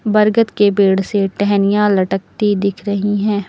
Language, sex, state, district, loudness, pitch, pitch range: Hindi, female, Uttar Pradesh, Lucknow, -15 LUFS, 205 Hz, 200-210 Hz